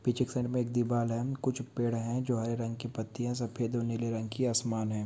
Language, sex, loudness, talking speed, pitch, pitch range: Hindi, male, -33 LUFS, 260 wpm, 120 Hz, 115-125 Hz